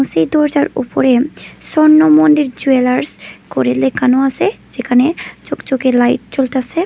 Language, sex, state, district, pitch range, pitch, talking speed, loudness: Bengali, female, Tripura, West Tripura, 250-300 Hz, 265 Hz, 105 wpm, -13 LUFS